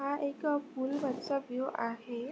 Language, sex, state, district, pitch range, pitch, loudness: Marathi, female, Maharashtra, Sindhudurg, 250-285 Hz, 275 Hz, -35 LUFS